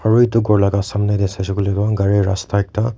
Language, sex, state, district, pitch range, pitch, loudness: Nagamese, male, Nagaland, Kohima, 100-105 Hz, 100 Hz, -17 LUFS